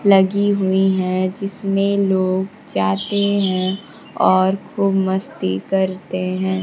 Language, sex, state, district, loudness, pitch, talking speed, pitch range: Hindi, female, Bihar, Kaimur, -19 LUFS, 190 Hz, 110 wpm, 185-195 Hz